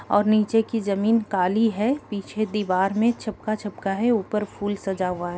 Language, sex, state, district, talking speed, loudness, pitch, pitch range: Hindi, female, Jharkhand, Sahebganj, 210 wpm, -23 LUFS, 210 Hz, 195-220 Hz